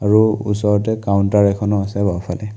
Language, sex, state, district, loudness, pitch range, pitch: Assamese, male, Assam, Kamrup Metropolitan, -17 LUFS, 100-105 Hz, 105 Hz